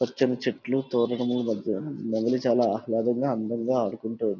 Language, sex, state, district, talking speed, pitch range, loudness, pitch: Telugu, male, Andhra Pradesh, Visakhapatnam, 110 wpm, 115-125 Hz, -26 LUFS, 120 Hz